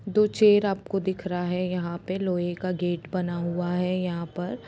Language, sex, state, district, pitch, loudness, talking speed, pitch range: Hindi, female, Jharkhand, Jamtara, 180 Hz, -26 LUFS, 215 wpm, 175-190 Hz